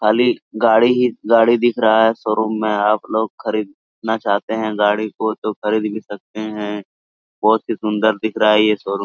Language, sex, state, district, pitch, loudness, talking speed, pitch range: Hindi, male, Jharkhand, Sahebganj, 110 Hz, -17 LUFS, 200 wpm, 105-110 Hz